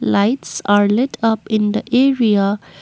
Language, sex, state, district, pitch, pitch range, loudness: English, female, Assam, Kamrup Metropolitan, 215 Hz, 205-240 Hz, -16 LUFS